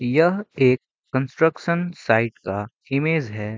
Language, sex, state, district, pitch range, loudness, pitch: Hindi, male, Bihar, Gopalganj, 115-160 Hz, -22 LUFS, 135 Hz